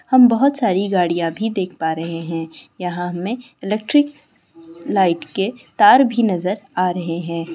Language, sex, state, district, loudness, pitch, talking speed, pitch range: Hindi, female, West Bengal, Kolkata, -18 LUFS, 195 Hz, 160 wpm, 175-245 Hz